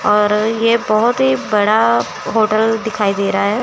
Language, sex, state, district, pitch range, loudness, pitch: Hindi, female, Chandigarh, Chandigarh, 210-225 Hz, -15 LUFS, 215 Hz